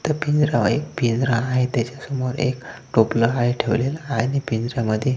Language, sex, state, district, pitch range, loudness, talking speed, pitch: Marathi, male, Maharashtra, Solapur, 115-140 Hz, -21 LUFS, 160 wpm, 125 Hz